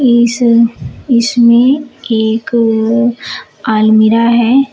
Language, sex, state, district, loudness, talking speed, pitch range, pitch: Hindi, female, Uttar Pradesh, Shamli, -10 LUFS, 65 wpm, 225-245 Hz, 235 Hz